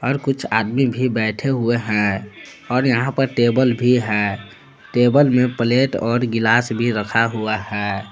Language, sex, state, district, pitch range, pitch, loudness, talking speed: Hindi, male, Jharkhand, Palamu, 110-125 Hz, 120 Hz, -18 LUFS, 155 wpm